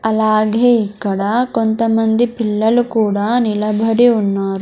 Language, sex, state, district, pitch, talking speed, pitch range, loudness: Telugu, male, Andhra Pradesh, Sri Satya Sai, 220 Hz, 90 wpm, 210-235 Hz, -15 LUFS